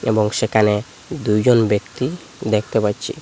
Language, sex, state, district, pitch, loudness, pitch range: Bengali, male, Assam, Hailakandi, 110 Hz, -19 LUFS, 105-110 Hz